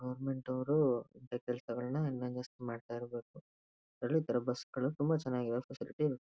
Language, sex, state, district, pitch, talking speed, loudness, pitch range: Kannada, male, Karnataka, Shimoga, 125 Hz, 115 wpm, -37 LUFS, 120-135 Hz